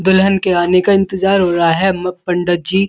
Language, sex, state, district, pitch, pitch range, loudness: Hindi, female, Uttar Pradesh, Muzaffarnagar, 185 Hz, 175-195 Hz, -14 LUFS